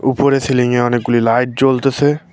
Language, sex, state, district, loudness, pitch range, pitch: Bengali, male, West Bengal, Cooch Behar, -14 LUFS, 120-135 Hz, 130 Hz